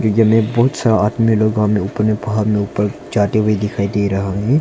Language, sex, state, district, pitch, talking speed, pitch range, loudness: Hindi, male, Arunachal Pradesh, Longding, 105 Hz, 235 wpm, 105-110 Hz, -16 LUFS